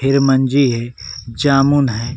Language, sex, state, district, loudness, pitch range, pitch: Hindi, male, Uttar Pradesh, Varanasi, -15 LUFS, 115-140 Hz, 130 Hz